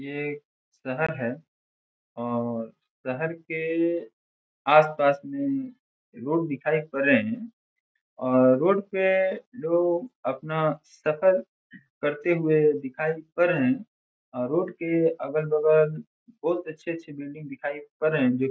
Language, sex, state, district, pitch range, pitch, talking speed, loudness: Hindi, male, Bihar, Saran, 140-175 Hz, 155 Hz, 120 wpm, -25 LUFS